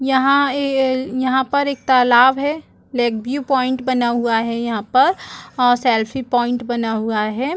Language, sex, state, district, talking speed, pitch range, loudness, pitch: Hindi, female, Chhattisgarh, Bilaspur, 165 wpm, 240-270 Hz, -17 LUFS, 255 Hz